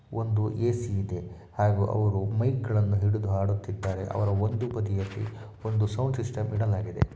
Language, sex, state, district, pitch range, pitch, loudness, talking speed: Kannada, male, Karnataka, Shimoga, 100-110 Hz, 105 Hz, -28 LUFS, 90 wpm